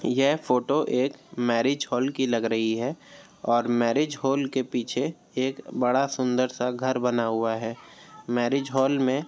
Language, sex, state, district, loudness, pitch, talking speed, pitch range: Hindi, male, Uttar Pradesh, Jyotiba Phule Nagar, -26 LUFS, 130 Hz, 170 wpm, 120-135 Hz